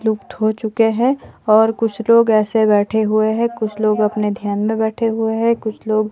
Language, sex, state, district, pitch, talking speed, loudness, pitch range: Hindi, female, Himachal Pradesh, Shimla, 220 Hz, 205 wpm, -17 LUFS, 215-225 Hz